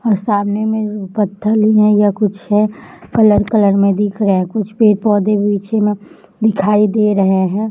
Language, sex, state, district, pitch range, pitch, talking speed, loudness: Hindi, female, Jharkhand, Jamtara, 205-215 Hz, 210 Hz, 165 wpm, -14 LUFS